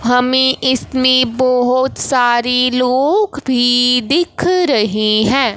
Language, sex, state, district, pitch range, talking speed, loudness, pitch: Hindi, female, Punjab, Fazilka, 245-265 Hz, 95 wpm, -13 LUFS, 255 Hz